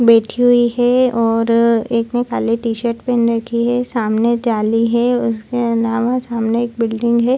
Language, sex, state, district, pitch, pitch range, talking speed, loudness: Hindi, female, Bihar, Lakhisarai, 235 Hz, 230-240 Hz, 165 wpm, -16 LUFS